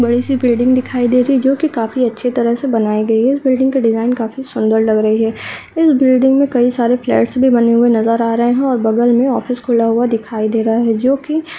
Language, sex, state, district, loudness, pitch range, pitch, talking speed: Hindi, female, Uttarakhand, Tehri Garhwal, -14 LUFS, 230-260 Hz, 245 Hz, 260 wpm